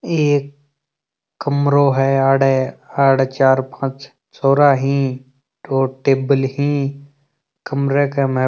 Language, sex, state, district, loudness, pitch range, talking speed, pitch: Marwari, male, Rajasthan, Churu, -17 LUFS, 135-145 Hz, 85 wpm, 140 Hz